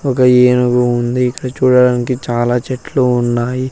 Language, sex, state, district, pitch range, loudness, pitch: Telugu, male, Andhra Pradesh, Sri Satya Sai, 120-130 Hz, -13 LUFS, 125 Hz